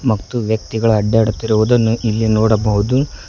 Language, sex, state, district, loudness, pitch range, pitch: Kannada, male, Karnataka, Koppal, -16 LUFS, 110-115 Hz, 110 Hz